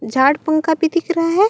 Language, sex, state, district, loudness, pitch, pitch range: Chhattisgarhi, female, Chhattisgarh, Raigarh, -17 LUFS, 320 Hz, 310-340 Hz